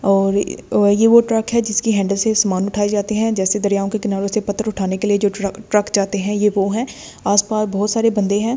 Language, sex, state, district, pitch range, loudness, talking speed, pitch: Hindi, female, Delhi, New Delhi, 200-220 Hz, -17 LUFS, 240 wpm, 205 Hz